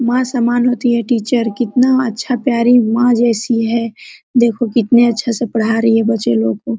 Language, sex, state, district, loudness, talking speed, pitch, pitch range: Hindi, female, Jharkhand, Sahebganj, -14 LUFS, 185 wpm, 235 Hz, 225-245 Hz